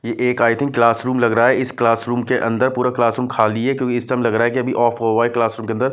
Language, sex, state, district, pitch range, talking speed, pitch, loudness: Hindi, male, Bihar, West Champaran, 115-125 Hz, 315 wpm, 120 Hz, -17 LUFS